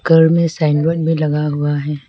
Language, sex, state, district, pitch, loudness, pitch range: Hindi, female, Arunachal Pradesh, Lower Dibang Valley, 155 Hz, -15 LUFS, 150-165 Hz